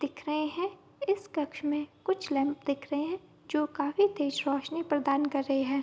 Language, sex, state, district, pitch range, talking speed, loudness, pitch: Hindi, female, Bihar, Bhagalpur, 280-330 Hz, 195 wpm, -31 LUFS, 295 Hz